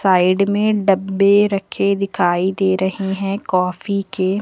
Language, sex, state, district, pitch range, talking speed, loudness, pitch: Hindi, female, Uttar Pradesh, Lucknow, 185-200 Hz, 135 wpm, -17 LUFS, 195 Hz